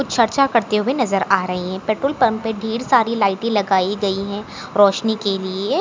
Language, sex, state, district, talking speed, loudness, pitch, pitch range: Hindi, female, Maharashtra, Aurangabad, 185 wpm, -19 LUFS, 210 Hz, 195-235 Hz